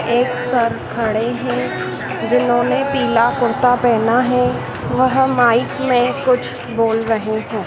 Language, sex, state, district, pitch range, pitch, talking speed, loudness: Hindi, female, Madhya Pradesh, Dhar, 225-250 Hz, 240 Hz, 125 wpm, -17 LUFS